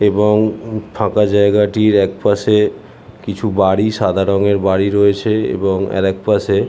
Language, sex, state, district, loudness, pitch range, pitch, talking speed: Bengali, male, West Bengal, Jhargram, -15 LUFS, 100-105 Hz, 100 Hz, 110 wpm